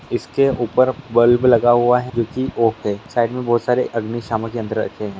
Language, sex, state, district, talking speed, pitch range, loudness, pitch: Hindi, male, Chhattisgarh, Bilaspur, 195 wpm, 115-125 Hz, -18 LUFS, 120 Hz